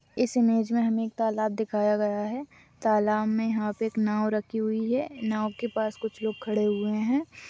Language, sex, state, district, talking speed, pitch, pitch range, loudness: Hindi, female, West Bengal, Dakshin Dinajpur, 200 wpm, 220 Hz, 215-225 Hz, -27 LUFS